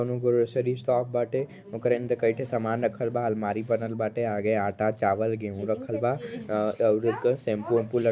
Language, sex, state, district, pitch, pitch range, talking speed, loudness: Bhojpuri, male, Uttar Pradesh, Varanasi, 115 Hz, 110-120 Hz, 200 wpm, -27 LUFS